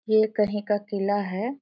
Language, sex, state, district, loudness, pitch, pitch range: Hindi, female, Jharkhand, Sahebganj, -25 LUFS, 210 Hz, 205-215 Hz